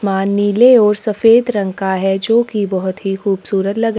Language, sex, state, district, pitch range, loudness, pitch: Hindi, female, Chhattisgarh, Kabirdham, 195-225 Hz, -14 LUFS, 200 Hz